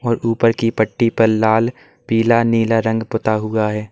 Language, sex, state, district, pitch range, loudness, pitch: Hindi, male, Uttar Pradesh, Lalitpur, 110-115 Hz, -17 LUFS, 115 Hz